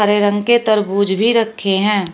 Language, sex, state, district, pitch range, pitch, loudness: Hindi, female, Uttar Pradesh, Shamli, 200-220 Hz, 210 Hz, -15 LUFS